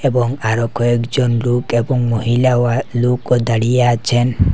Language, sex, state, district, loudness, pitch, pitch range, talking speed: Bengali, male, Assam, Hailakandi, -16 LUFS, 120 Hz, 120-125 Hz, 130 wpm